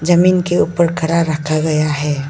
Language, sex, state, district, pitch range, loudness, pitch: Hindi, female, Arunachal Pradesh, Lower Dibang Valley, 155-170 Hz, -15 LUFS, 160 Hz